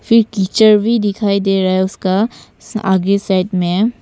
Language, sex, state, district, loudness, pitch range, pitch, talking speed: Hindi, female, Arunachal Pradesh, Papum Pare, -14 LUFS, 190-215 Hz, 200 Hz, 165 wpm